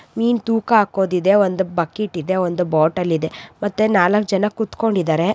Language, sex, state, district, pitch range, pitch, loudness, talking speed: Kannada, female, Karnataka, Raichur, 175-215 Hz, 195 Hz, -18 LUFS, 155 wpm